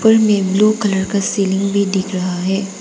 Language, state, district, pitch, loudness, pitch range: Hindi, Arunachal Pradesh, Papum Pare, 195 Hz, -16 LUFS, 190-205 Hz